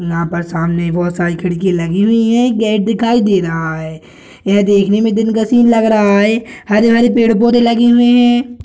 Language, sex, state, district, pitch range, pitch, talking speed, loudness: Hindi, male, Bihar, Gaya, 175-230 Hz, 215 Hz, 200 wpm, -12 LUFS